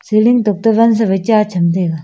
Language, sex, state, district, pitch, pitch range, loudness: Wancho, female, Arunachal Pradesh, Longding, 215 Hz, 185-225 Hz, -13 LUFS